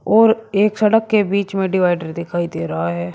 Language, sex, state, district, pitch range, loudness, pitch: Hindi, male, Uttar Pradesh, Shamli, 170-210 Hz, -17 LUFS, 190 Hz